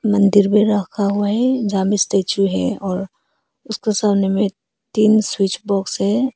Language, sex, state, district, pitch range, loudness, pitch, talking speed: Hindi, female, Arunachal Pradesh, Papum Pare, 195-215 Hz, -17 LUFS, 205 Hz, 150 wpm